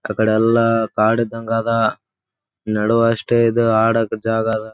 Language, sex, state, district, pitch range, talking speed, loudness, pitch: Kannada, male, Karnataka, Raichur, 110-115 Hz, 115 wpm, -17 LUFS, 115 Hz